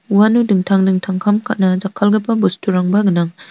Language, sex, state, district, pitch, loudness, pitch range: Garo, female, Meghalaya, North Garo Hills, 195 Hz, -15 LUFS, 185-210 Hz